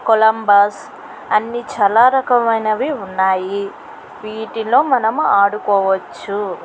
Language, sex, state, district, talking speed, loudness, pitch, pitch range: Telugu, female, Andhra Pradesh, Krishna, 70 wpm, -16 LUFS, 220 Hz, 200-240 Hz